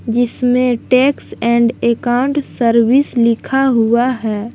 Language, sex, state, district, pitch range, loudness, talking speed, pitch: Hindi, female, Jharkhand, Palamu, 235-255 Hz, -14 LUFS, 105 wpm, 240 Hz